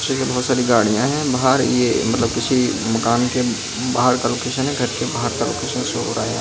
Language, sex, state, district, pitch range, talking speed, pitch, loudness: Hindi, male, Delhi, New Delhi, 115-130 Hz, 225 wpm, 125 Hz, -19 LUFS